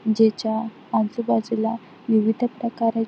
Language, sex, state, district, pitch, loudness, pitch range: Marathi, female, Maharashtra, Aurangabad, 225 Hz, -23 LUFS, 220-230 Hz